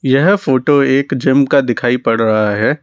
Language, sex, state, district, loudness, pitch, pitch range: Hindi, male, Rajasthan, Jaipur, -13 LUFS, 135 Hz, 120-140 Hz